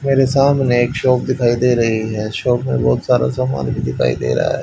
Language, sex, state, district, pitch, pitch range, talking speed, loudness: Hindi, male, Haryana, Charkhi Dadri, 120 Hz, 105-130 Hz, 235 wpm, -16 LUFS